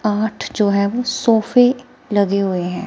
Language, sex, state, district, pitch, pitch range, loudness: Hindi, female, Himachal Pradesh, Shimla, 215 Hz, 200-245 Hz, -17 LUFS